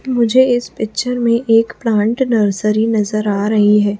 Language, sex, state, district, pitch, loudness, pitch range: Hindi, female, Chhattisgarh, Raipur, 225 Hz, -15 LUFS, 210-235 Hz